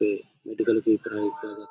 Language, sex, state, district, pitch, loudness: Hindi, male, Bihar, Saharsa, 110 Hz, -26 LUFS